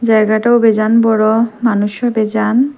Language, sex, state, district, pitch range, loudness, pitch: Bengali, female, Assam, Hailakandi, 215-235 Hz, -13 LUFS, 225 Hz